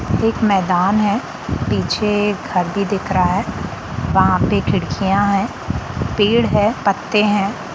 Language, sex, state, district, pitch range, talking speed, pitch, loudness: Hindi, female, Bihar, Sitamarhi, 195-210 Hz, 125 wpm, 205 Hz, -17 LUFS